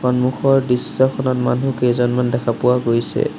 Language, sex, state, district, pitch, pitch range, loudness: Assamese, male, Assam, Sonitpur, 125 Hz, 120-130 Hz, -17 LUFS